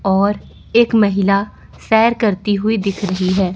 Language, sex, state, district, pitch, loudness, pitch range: Hindi, female, Chandigarh, Chandigarh, 200 Hz, -16 LUFS, 195-220 Hz